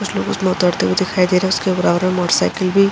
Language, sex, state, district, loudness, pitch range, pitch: Hindi, female, Uttar Pradesh, Jalaun, -16 LUFS, 180-190 Hz, 185 Hz